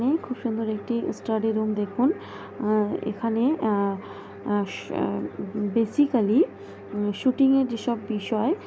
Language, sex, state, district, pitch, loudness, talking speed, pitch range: Bengali, female, West Bengal, North 24 Parganas, 225 Hz, -25 LUFS, 125 wpm, 210-255 Hz